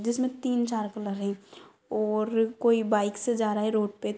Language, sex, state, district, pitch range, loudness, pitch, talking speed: Magahi, female, Bihar, Gaya, 210-235 Hz, -28 LUFS, 215 Hz, 200 wpm